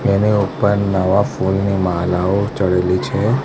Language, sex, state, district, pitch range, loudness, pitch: Gujarati, male, Gujarat, Gandhinagar, 95-105 Hz, -17 LUFS, 100 Hz